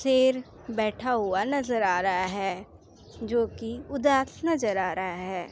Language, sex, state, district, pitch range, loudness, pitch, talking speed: Hindi, female, Uttar Pradesh, Jalaun, 190-260 Hz, -27 LUFS, 230 Hz, 140 wpm